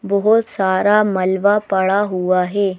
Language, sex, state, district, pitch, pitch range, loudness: Hindi, female, Madhya Pradesh, Bhopal, 200 Hz, 185-205 Hz, -16 LUFS